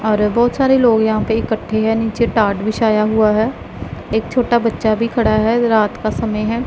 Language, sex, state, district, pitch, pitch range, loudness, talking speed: Hindi, female, Punjab, Pathankot, 220 Hz, 215-230 Hz, -16 LUFS, 205 wpm